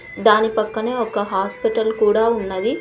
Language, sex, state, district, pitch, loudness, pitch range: Telugu, female, Andhra Pradesh, Sri Satya Sai, 220 Hz, -19 LUFS, 210-225 Hz